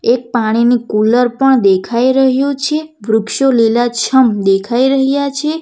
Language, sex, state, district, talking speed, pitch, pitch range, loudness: Gujarati, female, Gujarat, Valsad, 130 wpm, 245 Hz, 225-270 Hz, -13 LUFS